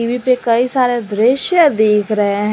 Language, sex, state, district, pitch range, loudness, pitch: Hindi, female, Jharkhand, Garhwa, 210-255 Hz, -14 LUFS, 235 Hz